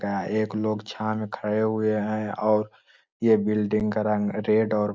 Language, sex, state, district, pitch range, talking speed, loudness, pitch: Magahi, male, Bihar, Lakhisarai, 105-110 Hz, 195 wpm, -25 LUFS, 105 Hz